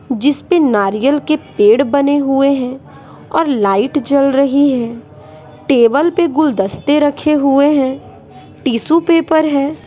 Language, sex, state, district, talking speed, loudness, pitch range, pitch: Hindi, female, Bihar, Patna, 135 wpm, -13 LUFS, 250-300 Hz, 280 Hz